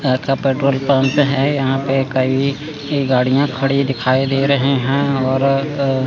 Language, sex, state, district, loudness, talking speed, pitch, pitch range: Hindi, male, Chandigarh, Chandigarh, -16 LUFS, 160 wpm, 135 Hz, 135-140 Hz